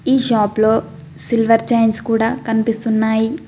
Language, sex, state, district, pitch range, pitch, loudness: Telugu, female, Telangana, Mahabubabad, 220-230 Hz, 225 Hz, -16 LUFS